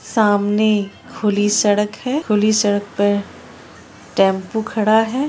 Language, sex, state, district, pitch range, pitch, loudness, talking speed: Hindi, female, Bihar, Araria, 205-220 Hz, 210 Hz, -17 LUFS, 125 wpm